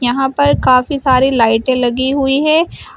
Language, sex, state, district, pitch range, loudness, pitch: Hindi, female, Uttar Pradesh, Shamli, 250-280 Hz, -13 LUFS, 265 Hz